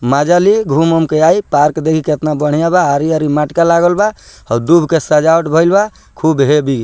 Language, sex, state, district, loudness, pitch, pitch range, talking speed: Bhojpuri, male, Bihar, Muzaffarpur, -12 LUFS, 160 Hz, 150-170 Hz, 200 wpm